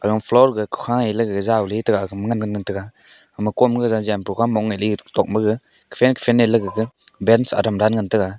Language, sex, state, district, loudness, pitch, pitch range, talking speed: Wancho, male, Arunachal Pradesh, Longding, -19 LUFS, 110 Hz, 105-115 Hz, 205 wpm